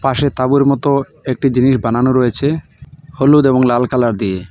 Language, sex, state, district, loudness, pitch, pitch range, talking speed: Bengali, male, Assam, Hailakandi, -14 LUFS, 130 Hz, 125-140 Hz, 160 wpm